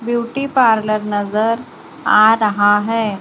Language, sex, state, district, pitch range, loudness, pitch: Hindi, female, Maharashtra, Gondia, 210-235 Hz, -15 LUFS, 220 Hz